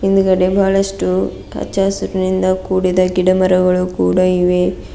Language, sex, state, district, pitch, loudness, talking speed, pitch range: Kannada, female, Karnataka, Bidar, 185 Hz, -15 LUFS, 95 wpm, 180-190 Hz